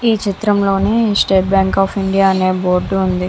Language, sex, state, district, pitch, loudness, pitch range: Telugu, female, Andhra Pradesh, Visakhapatnam, 195 Hz, -14 LUFS, 190-200 Hz